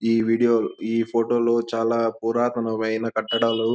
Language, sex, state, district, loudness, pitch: Telugu, male, Andhra Pradesh, Anantapur, -22 LUFS, 115 Hz